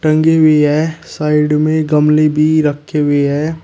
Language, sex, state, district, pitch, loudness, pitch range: Hindi, male, Uttar Pradesh, Shamli, 155 Hz, -13 LUFS, 150-155 Hz